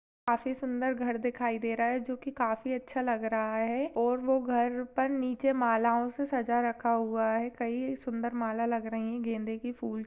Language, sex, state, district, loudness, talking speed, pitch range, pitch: Hindi, female, Maharashtra, Aurangabad, -31 LUFS, 205 wpm, 230-255 Hz, 240 Hz